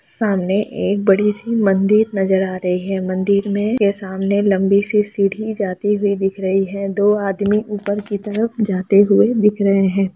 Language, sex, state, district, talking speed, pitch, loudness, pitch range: Hindi, female, Bihar, Lakhisarai, 170 wpm, 200 Hz, -17 LUFS, 195-210 Hz